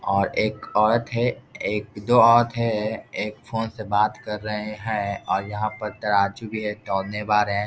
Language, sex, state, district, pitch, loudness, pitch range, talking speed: Hindi, male, Bihar, Jahanabad, 105 Hz, -23 LUFS, 105-115 Hz, 180 wpm